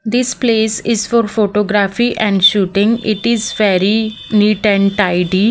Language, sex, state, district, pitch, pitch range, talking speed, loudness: English, female, Maharashtra, Mumbai Suburban, 210 Hz, 205-225 Hz, 140 wpm, -14 LUFS